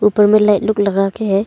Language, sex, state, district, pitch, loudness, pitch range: Hindi, female, Arunachal Pradesh, Longding, 205 Hz, -14 LUFS, 200-210 Hz